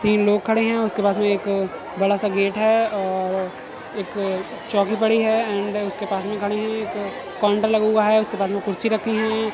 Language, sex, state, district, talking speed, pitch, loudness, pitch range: Hindi, male, Uttar Pradesh, Etah, 220 wpm, 210 Hz, -21 LUFS, 200-220 Hz